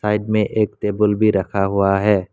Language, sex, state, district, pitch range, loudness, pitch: Hindi, male, Assam, Kamrup Metropolitan, 100-105 Hz, -18 LUFS, 105 Hz